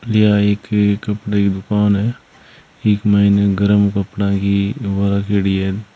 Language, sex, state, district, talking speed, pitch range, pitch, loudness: Hindi, male, Rajasthan, Churu, 130 wpm, 100-105 Hz, 100 Hz, -16 LUFS